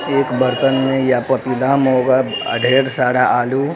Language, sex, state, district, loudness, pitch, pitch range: Hindi, male, Bihar, Araria, -16 LUFS, 130 Hz, 125-135 Hz